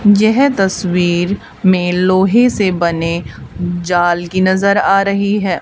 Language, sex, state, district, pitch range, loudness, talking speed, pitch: Hindi, female, Haryana, Charkhi Dadri, 175-200 Hz, -14 LUFS, 130 wpm, 185 Hz